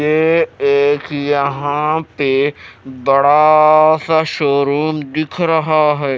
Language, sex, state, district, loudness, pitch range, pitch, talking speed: Hindi, male, Odisha, Malkangiri, -14 LUFS, 140-155 Hz, 150 Hz, 95 wpm